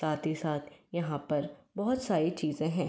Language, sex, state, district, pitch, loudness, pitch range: Hindi, female, Uttar Pradesh, Varanasi, 155 Hz, -33 LUFS, 150-175 Hz